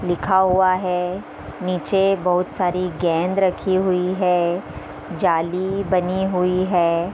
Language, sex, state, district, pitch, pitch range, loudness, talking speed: Hindi, female, Uttar Pradesh, Varanasi, 180 Hz, 180-190 Hz, -20 LUFS, 120 wpm